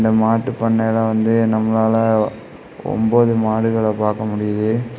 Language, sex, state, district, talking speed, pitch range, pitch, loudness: Tamil, male, Tamil Nadu, Kanyakumari, 110 wpm, 110-115 Hz, 110 Hz, -17 LUFS